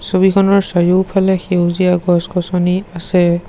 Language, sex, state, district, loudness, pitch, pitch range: Assamese, male, Assam, Sonitpur, -14 LUFS, 180 Hz, 175-190 Hz